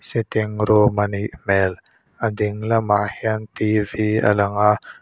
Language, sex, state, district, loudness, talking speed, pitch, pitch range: Mizo, male, Mizoram, Aizawl, -20 LUFS, 130 wpm, 105 Hz, 105-110 Hz